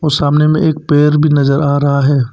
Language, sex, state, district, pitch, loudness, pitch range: Hindi, male, Arunachal Pradesh, Papum Pare, 145 Hz, -12 LUFS, 140-150 Hz